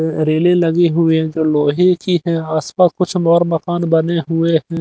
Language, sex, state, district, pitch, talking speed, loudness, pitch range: Hindi, male, Haryana, Jhajjar, 165 Hz, 185 wpm, -15 LUFS, 160-175 Hz